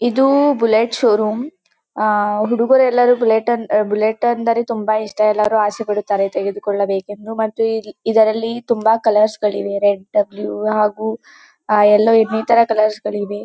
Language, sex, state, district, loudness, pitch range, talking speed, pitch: Kannada, female, Karnataka, Dharwad, -16 LUFS, 210-230 Hz, 130 wpm, 220 Hz